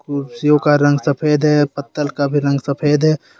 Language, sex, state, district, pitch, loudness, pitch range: Hindi, male, Jharkhand, Deoghar, 145 Hz, -16 LUFS, 140-150 Hz